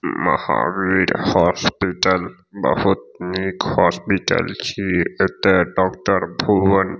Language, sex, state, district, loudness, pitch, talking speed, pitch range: Maithili, male, Bihar, Saharsa, -19 LUFS, 95 Hz, 85 wpm, 90-95 Hz